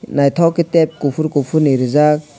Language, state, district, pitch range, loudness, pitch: Kokborok, Tripura, West Tripura, 140-160 Hz, -15 LUFS, 150 Hz